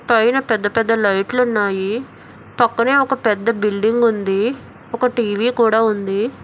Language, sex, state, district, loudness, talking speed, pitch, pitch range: Telugu, female, Telangana, Hyderabad, -17 LUFS, 120 wpm, 225 Hz, 210-240 Hz